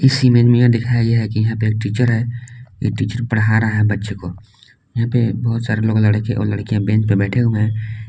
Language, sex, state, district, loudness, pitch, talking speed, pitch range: Hindi, male, Jharkhand, Palamu, -17 LUFS, 110 Hz, 230 wpm, 105-120 Hz